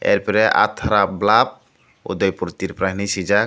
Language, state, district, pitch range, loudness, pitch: Kokborok, Tripura, Dhalai, 95-100 Hz, -18 LUFS, 95 Hz